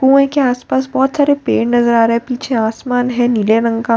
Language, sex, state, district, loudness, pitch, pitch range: Hindi, female, Bihar, Katihar, -14 LUFS, 245 Hz, 230-265 Hz